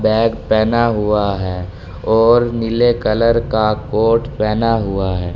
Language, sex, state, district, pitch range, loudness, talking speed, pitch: Hindi, male, Delhi, New Delhi, 105-115 Hz, -15 LUFS, 135 wpm, 110 Hz